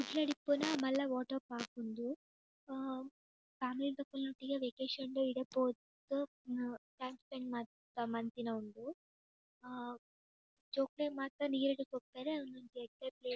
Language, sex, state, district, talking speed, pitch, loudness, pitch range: Tulu, female, Karnataka, Dakshina Kannada, 125 wpm, 265 Hz, -41 LUFS, 245-275 Hz